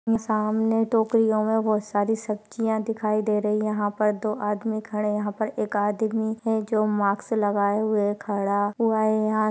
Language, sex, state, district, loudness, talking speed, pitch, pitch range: Hindi, female, Maharashtra, Nagpur, -24 LUFS, 175 wpm, 215 Hz, 210-220 Hz